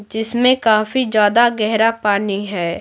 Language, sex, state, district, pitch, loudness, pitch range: Hindi, female, Bihar, Patna, 220 Hz, -16 LUFS, 205-235 Hz